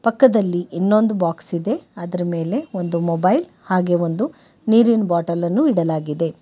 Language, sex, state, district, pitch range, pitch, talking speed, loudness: Kannada, female, Karnataka, Bangalore, 170-230 Hz, 180 Hz, 120 wpm, -19 LUFS